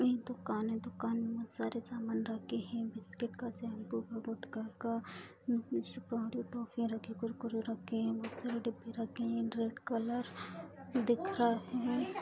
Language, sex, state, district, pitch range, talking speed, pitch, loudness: Hindi, female, Bihar, Bhagalpur, 225-240 Hz, 150 wpm, 230 Hz, -39 LUFS